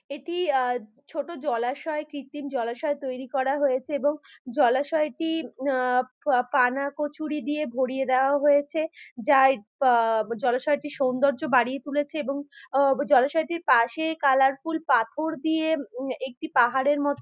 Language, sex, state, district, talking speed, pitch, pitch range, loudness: Bengali, female, West Bengal, Dakshin Dinajpur, 125 wpm, 280 Hz, 255-300 Hz, -25 LUFS